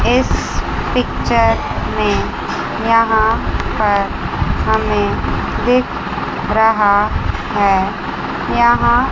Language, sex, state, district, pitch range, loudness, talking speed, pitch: Hindi, female, Chandigarh, Chandigarh, 205-235 Hz, -16 LUFS, 65 wpm, 220 Hz